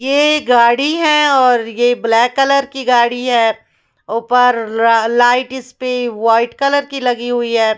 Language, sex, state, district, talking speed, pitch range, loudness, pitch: Hindi, female, Bihar, West Champaran, 155 wpm, 230-265 Hz, -13 LUFS, 245 Hz